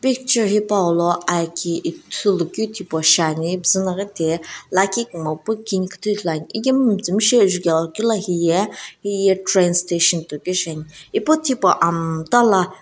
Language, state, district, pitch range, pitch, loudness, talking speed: Sumi, Nagaland, Dimapur, 170-210 Hz, 185 Hz, -19 LUFS, 145 wpm